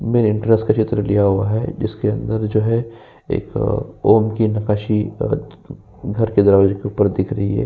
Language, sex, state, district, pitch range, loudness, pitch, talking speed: Hindi, male, Uttar Pradesh, Jyotiba Phule Nagar, 100-110 Hz, -18 LUFS, 110 Hz, 190 wpm